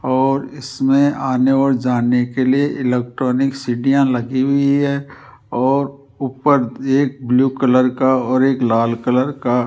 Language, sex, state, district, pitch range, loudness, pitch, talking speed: Hindi, male, Rajasthan, Jaipur, 125-135 Hz, -17 LUFS, 130 Hz, 150 wpm